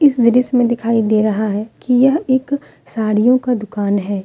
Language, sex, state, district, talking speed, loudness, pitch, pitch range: Hindi, female, Jharkhand, Deoghar, 200 wpm, -16 LUFS, 235 Hz, 215-255 Hz